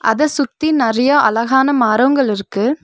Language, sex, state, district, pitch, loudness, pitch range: Tamil, female, Tamil Nadu, Nilgiris, 265 Hz, -14 LUFS, 230-285 Hz